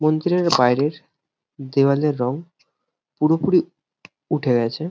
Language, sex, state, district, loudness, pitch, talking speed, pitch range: Bengali, male, West Bengal, Jhargram, -20 LUFS, 155 Hz, 85 wpm, 140-170 Hz